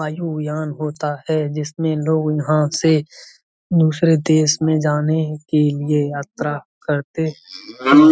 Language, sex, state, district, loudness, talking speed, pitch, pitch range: Hindi, male, Uttar Pradesh, Budaun, -19 LUFS, 125 wpm, 155 Hz, 150-160 Hz